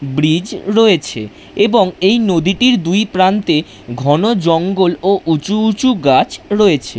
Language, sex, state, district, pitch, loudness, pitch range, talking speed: Bengali, male, West Bengal, Dakshin Dinajpur, 185 Hz, -13 LUFS, 155-210 Hz, 120 wpm